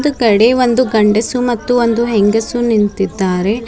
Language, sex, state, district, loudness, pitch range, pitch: Kannada, female, Karnataka, Bidar, -13 LUFS, 210-245 Hz, 225 Hz